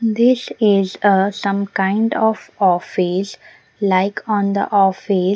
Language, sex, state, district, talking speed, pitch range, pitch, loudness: English, female, Punjab, Pathankot, 125 wpm, 190-215 Hz, 200 Hz, -17 LUFS